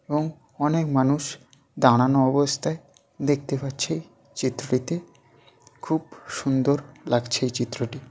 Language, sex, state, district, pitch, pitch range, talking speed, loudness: Bengali, male, West Bengal, Jalpaiguri, 140 Hz, 130-150 Hz, 90 wpm, -24 LUFS